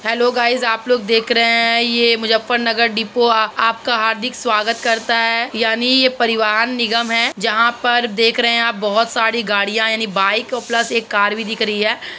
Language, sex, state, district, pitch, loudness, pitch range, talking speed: Hindi, female, Uttar Pradesh, Muzaffarnagar, 230 Hz, -15 LUFS, 225-235 Hz, 190 wpm